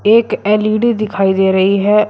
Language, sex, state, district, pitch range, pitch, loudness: Hindi, male, Uttar Pradesh, Shamli, 195-215 Hz, 210 Hz, -13 LUFS